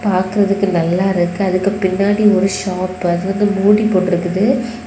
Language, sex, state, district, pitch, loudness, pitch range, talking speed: Tamil, female, Tamil Nadu, Kanyakumari, 195 Hz, -15 LUFS, 185-205 Hz, 125 wpm